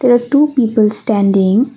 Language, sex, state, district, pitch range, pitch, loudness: English, female, Assam, Kamrup Metropolitan, 210-255 Hz, 230 Hz, -12 LUFS